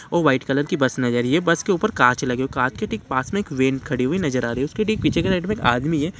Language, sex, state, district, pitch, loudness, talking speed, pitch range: Hindi, male, Bihar, Saran, 140 Hz, -21 LUFS, 310 wpm, 125-175 Hz